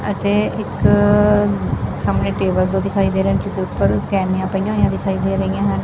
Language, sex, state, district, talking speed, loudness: Punjabi, female, Punjab, Fazilka, 175 wpm, -17 LUFS